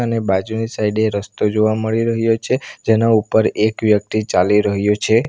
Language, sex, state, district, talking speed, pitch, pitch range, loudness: Gujarati, male, Gujarat, Valsad, 180 wpm, 110 Hz, 105-115 Hz, -17 LUFS